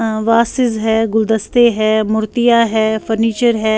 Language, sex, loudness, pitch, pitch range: Urdu, female, -14 LUFS, 220 Hz, 220-230 Hz